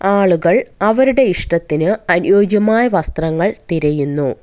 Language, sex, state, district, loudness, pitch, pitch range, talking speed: Malayalam, female, Kerala, Kollam, -14 LUFS, 180 Hz, 160-210 Hz, 80 wpm